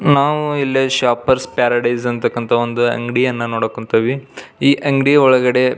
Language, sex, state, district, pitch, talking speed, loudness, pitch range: Kannada, male, Karnataka, Belgaum, 125 Hz, 135 wpm, -16 LUFS, 120-135 Hz